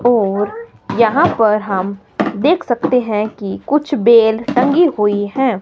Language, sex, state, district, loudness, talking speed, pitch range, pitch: Hindi, female, Himachal Pradesh, Shimla, -15 LUFS, 140 wpm, 205-270 Hz, 230 Hz